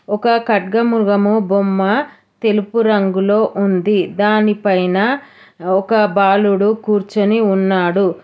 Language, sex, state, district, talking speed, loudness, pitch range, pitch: Telugu, female, Telangana, Hyderabad, 85 wpm, -15 LUFS, 195-215 Hz, 205 Hz